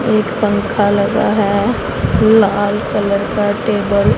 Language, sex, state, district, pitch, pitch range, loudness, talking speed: Hindi, female, Punjab, Pathankot, 205 Hz, 205-215 Hz, -14 LUFS, 130 wpm